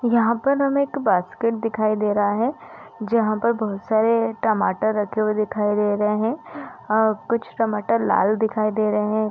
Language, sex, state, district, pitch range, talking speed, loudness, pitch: Hindi, female, Chhattisgarh, Bilaspur, 210-230 Hz, 180 wpm, -21 LUFS, 220 Hz